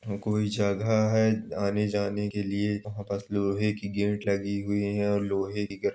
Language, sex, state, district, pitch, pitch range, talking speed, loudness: Hindi, male, Uttar Pradesh, Jalaun, 100 Hz, 100-105 Hz, 190 wpm, -28 LUFS